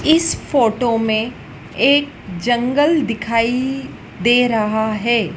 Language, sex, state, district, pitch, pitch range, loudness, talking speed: Hindi, female, Madhya Pradesh, Dhar, 235 Hz, 220-265 Hz, -17 LUFS, 100 wpm